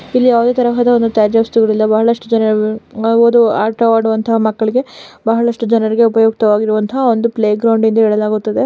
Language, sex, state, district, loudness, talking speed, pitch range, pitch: Kannada, female, Karnataka, Dakshina Kannada, -13 LUFS, 125 wpm, 220-235 Hz, 225 Hz